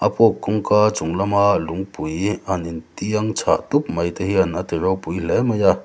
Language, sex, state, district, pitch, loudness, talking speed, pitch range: Mizo, male, Mizoram, Aizawl, 100 Hz, -20 LUFS, 185 wpm, 85-105 Hz